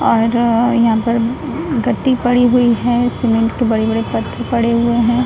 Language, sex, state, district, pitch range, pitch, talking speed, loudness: Hindi, female, Bihar, Saran, 230-245 Hz, 235 Hz, 160 wpm, -15 LUFS